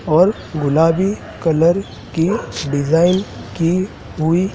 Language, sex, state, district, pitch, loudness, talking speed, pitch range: Hindi, male, Madhya Pradesh, Dhar, 165 Hz, -17 LUFS, 90 wpm, 160-185 Hz